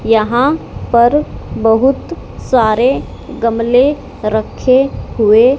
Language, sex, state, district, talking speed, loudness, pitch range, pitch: Hindi, female, Haryana, Charkhi Dadri, 75 wpm, -13 LUFS, 225-265 Hz, 240 Hz